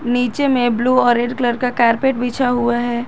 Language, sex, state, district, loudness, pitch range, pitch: Hindi, female, Jharkhand, Garhwa, -16 LUFS, 240-250 Hz, 245 Hz